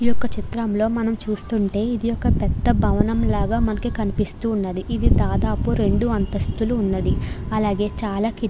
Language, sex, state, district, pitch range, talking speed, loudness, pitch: Telugu, female, Andhra Pradesh, Krishna, 205-230 Hz, 120 wpm, -22 LUFS, 215 Hz